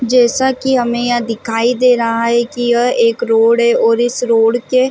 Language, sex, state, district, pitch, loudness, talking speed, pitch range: Hindi, female, Chhattisgarh, Bilaspur, 245 Hz, -13 LUFS, 210 wpm, 235-265 Hz